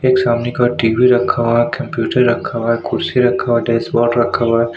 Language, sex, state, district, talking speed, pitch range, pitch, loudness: Hindi, male, Maharashtra, Aurangabad, 240 wpm, 115-125 Hz, 120 Hz, -15 LUFS